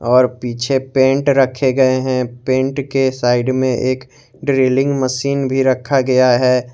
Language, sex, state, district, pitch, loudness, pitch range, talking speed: Hindi, male, Jharkhand, Garhwa, 130 Hz, -15 LUFS, 125-135 Hz, 150 wpm